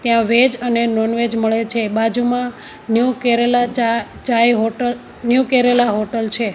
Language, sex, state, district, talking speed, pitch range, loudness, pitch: Gujarati, female, Gujarat, Gandhinagar, 155 wpm, 225-245 Hz, -16 LUFS, 235 Hz